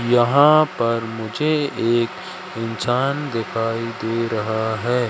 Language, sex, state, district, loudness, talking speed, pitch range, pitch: Hindi, male, Madhya Pradesh, Katni, -20 LUFS, 105 wpm, 115-125 Hz, 115 Hz